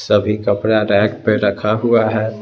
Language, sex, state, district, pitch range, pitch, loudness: Hindi, male, Bihar, Patna, 105-110 Hz, 105 Hz, -16 LUFS